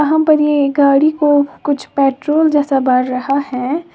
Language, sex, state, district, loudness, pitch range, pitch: Hindi, female, Uttar Pradesh, Lalitpur, -14 LUFS, 270-300 Hz, 285 Hz